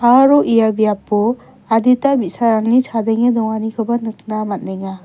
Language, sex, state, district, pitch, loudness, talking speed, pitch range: Garo, female, Meghalaya, West Garo Hills, 225 Hz, -16 LUFS, 105 wpm, 215-245 Hz